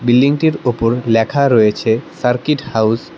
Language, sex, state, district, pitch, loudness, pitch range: Bengali, male, West Bengal, Cooch Behar, 125 Hz, -15 LUFS, 115-140 Hz